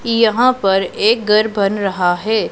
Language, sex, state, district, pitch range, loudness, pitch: Hindi, female, Punjab, Pathankot, 195-225 Hz, -15 LUFS, 215 Hz